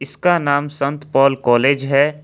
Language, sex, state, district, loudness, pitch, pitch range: Hindi, male, Jharkhand, Ranchi, -16 LUFS, 140 Hz, 135-145 Hz